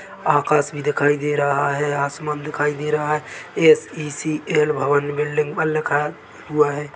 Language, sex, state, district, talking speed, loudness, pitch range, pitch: Hindi, male, Chhattisgarh, Bilaspur, 165 wpm, -20 LUFS, 145-150 Hz, 150 Hz